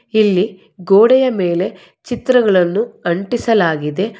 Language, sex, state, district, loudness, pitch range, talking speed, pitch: Kannada, female, Karnataka, Bangalore, -15 LUFS, 185-235 Hz, 70 wpm, 205 Hz